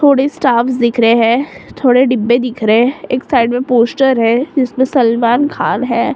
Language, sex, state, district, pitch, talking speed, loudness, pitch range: Hindi, female, Maharashtra, Mumbai Suburban, 245 Hz, 185 wpm, -13 LUFS, 235-265 Hz